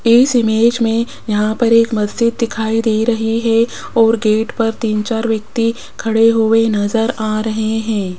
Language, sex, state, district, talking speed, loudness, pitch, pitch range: Hindi, female, Rajasthan, Jaipur, 170 wpm, -15 LUFS, 225 Hz, 220-230 Hz